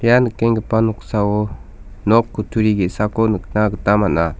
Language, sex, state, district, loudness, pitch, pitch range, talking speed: Garo, male, Meghalaya, South Garo Hills, -18 LUFS, 105 Hz, 100-115 Hz, 125 wpm